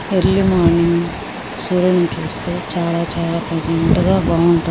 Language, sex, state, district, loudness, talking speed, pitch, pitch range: Telugu, female, Andhra Pradesh, Srikakulam, -17 LUFS, 115 wpm, 170 Hz, 170-180 Hz